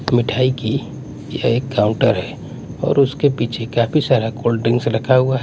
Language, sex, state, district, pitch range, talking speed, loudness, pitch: Hindi, male, Punjab, Kapurthala, 115-135 Hz, 175 wpm, -18 LUFS, 120 Hz